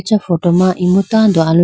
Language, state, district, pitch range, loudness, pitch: Idu Mishmi, Arunachal Pradesh, Lower Dibang Valley, 175-200 Hz, -13 LUFS, 180 Hz